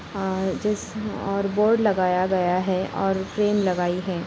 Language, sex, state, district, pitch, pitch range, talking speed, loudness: Hindi, female, Uttar Pradesh, Varanasi, 190 Hz, 185-210 Hz, 185 wpm, -23 LUFS